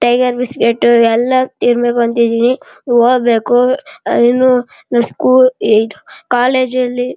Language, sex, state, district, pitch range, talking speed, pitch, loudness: Kannada, male, Karnataka, Shimoga, 235-255 Hz, 125 wpm, 245 Hz, -12 LUFS